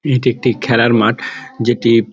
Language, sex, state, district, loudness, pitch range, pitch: Bengali, male, West Bengal, Dakshin Dinajpur, -14 LUFS, 115-125 Hz, 115 Hz